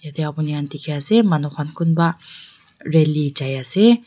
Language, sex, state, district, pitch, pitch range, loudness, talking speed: Nagamese, female, Nagaland, Dimapur, 155 Hz, 145-165 Hz, -19 LUFS, 135 wpm